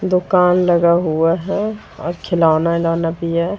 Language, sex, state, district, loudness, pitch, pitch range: Hindi, female, Uttar Pradesh, Varanasi, -16 LUFS, 170 Hz, 165-180 Hz